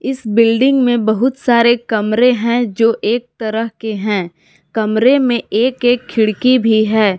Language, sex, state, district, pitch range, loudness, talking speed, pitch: Hindi, female, Jharkhand, Palamu, 220-245 Hz, -14 LUFS, 160 wpm, 230 Hz